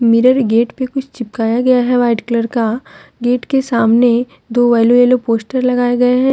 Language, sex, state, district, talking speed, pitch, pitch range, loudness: Hindi, female, Jharkhand, Deoghar, 190 wpm, 245 Hz, 235-255 Hz, -14 LUFS